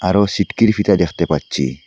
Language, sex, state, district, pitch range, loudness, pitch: Bengali, male, Assam, Hailakandi, 80-100 Hz, -16 LUFS, 90 Hz